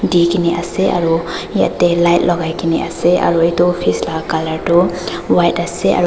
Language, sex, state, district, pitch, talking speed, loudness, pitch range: Nagamese, female, Nagaland, Dimapur, 170 Hz, 170 wpm, -15 LUFS, 165-175 Hz